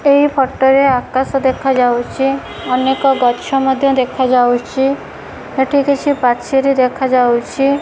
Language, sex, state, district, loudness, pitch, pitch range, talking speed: Odia, female, Odisha, Khordha, -14 LUFS, 265 Hz, 255-275 Hz, 100 wpm